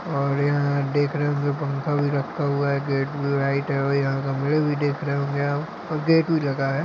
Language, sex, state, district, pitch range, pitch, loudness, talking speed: Hindi, male, Chhattisgarh, Korba, 140-145 Hz, 140 Hz, -23 LUFS, 255 wpm